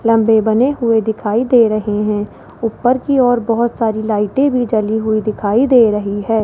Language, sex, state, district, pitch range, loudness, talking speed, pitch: Hindi, male, Rajasthan, Jaipur, 215-240 Hz, -15 LUFS, 185 wpm, 225 Hz